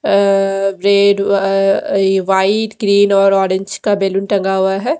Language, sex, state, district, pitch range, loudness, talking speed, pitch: Hindi, female, Odisha, Malkangiri, 195-200 Hz, -14 LUFS, 145 wpm, 195 Hz